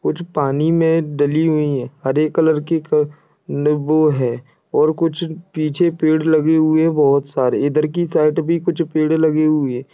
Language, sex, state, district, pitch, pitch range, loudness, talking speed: Hindi, male, Uttar Pradesh, Budaun, 155 Hz, 145-160 Hz, -17 LUFS, 165 wpm